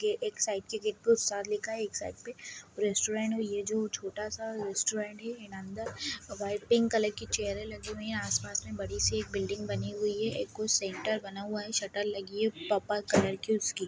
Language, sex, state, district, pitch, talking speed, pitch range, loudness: Hindi, female, Bihar, Jamui, 210 Hz, 220 wpm, 195-220 Hz, -32 LUFS